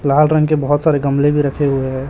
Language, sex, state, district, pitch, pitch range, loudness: Hindi, male, Chhattisgarh, Raipur, 145 Hz, 140-150 Hz, -15 LUFS